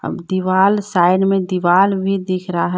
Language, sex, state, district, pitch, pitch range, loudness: Hindi, female, Jharkhand, Deoghar, 185 Hz, 180-195 Hz, -16 LUFS